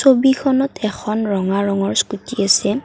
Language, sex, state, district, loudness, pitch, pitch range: Assamese, female, Assam, Kamrup Metropolitan, -17 LUFS, 215 Hz, 200-265 Hz